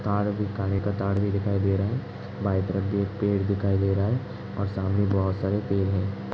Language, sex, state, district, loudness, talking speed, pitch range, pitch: Hindi, male, Uttar Pradesh, Hamirpur, -26 LUFS, 210 wpm, 95-100 Hz, 100 Hz